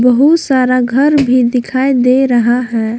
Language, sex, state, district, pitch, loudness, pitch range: Hindi, female, Jharkhand, Palamu, 255 Hz, -11 LUFS, 245-265 Hz